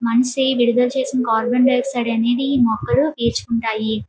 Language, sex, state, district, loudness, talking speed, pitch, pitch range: Telugu, female, Andhra Pradesh, Srikakulam, -18 LUFS, 130 wpm, 245 Hz, 230-260 Hz